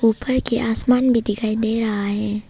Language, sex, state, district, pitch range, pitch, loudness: Hindi, female, Arunachal Pradesh, Papum Pare, 210-235 Hz, 225 Hz, -19 LUFS